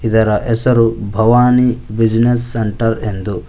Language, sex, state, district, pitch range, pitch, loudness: Kannada, male, Karnataka, Koppal, 110-120 Hz, 115 Hz, -14 LUFS